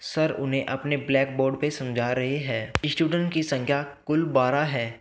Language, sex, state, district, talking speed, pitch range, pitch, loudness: Hindi, male, Uttar Pradesh, Shamli, 180 wpm, 135-150 Hz, 140 Hz, -25 LUFS